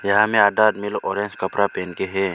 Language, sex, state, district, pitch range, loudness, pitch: Hindi, male, Arunachal Pradesh, Lower Dibang Valley, 95-105 Hz, -20 LUFS, 100 Hz